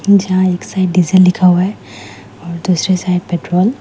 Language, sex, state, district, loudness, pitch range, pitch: Hindi, female, Meghalaya, West Garo Hills, -13 LUFS, 175-185 Hz, 180 Hz